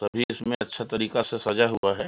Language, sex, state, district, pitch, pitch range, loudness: Hindi, male, Chhattisgarh, Bilaspur, 115 Hz, 110-120 Hz, -26 LUFS